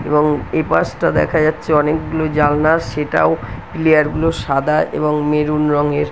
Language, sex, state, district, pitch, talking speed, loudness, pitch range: Bengali, female, West Bengal, North 24 Parganas, 150 Hz, 135 wpm, -16 LUFS, 150-155 Hz